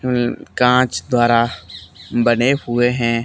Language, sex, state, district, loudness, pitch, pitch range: Hindi, male, Haryana, Charkhi Dadri, -17 LUFS, 120 Hz, 115-125 Hz